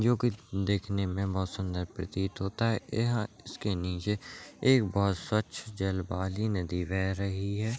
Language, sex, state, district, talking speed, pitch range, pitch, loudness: Hindi, male, Rajasthan, Churu, 155 wpm, 95-110 Hz, 100 Hz, -31 LUFS